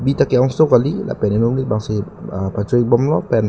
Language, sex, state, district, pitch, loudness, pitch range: Karbi, male, Assam, Karbi Anglong, 120 Hz, -17 LUFS, 105-135 Hz